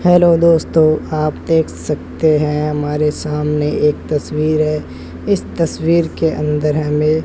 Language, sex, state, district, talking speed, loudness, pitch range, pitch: Hindi, male, Rajasthan, Bikaner, 140 wpm, -16 LUFS, 150-160 Hz, 155 Hz